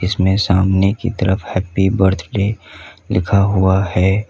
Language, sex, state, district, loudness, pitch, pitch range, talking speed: Hindi, male, Uttar Pradesh, Lalitpur, -16 LUFS, 95 Hz, 95-100 Hz, 125 wpm